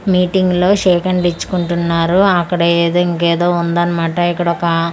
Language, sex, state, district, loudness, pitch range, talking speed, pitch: Telugu, female, Andhra Pradesh, Manyam, -14 LUFS, 170-180 Hz, 135 wpm, 175 Hz